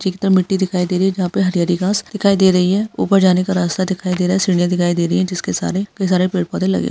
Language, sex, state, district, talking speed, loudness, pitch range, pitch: Hindi, female, Maharashtra, Nagpur, 305 wpm, -16 LUFS, 180-190 Hz, 185 Hz